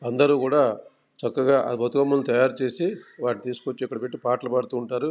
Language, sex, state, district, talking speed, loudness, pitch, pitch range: Telugu, male, Andhra Pradesh, Krishna, 115 wpm, -24 LUFS, 130 Hz, 125-140 Hz